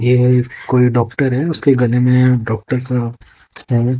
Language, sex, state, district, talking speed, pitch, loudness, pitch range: Hindi, female, Haryana, Jhajjar, 150 wpm, 125 Hz, -15 LUFS, 120-125 Hz